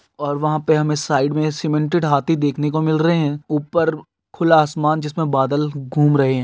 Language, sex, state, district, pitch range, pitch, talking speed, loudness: Hindi, male, Andhra Pradesh, Guntur, 145-155 Hz, 150 Hz, 205 wpm, -18 LUFS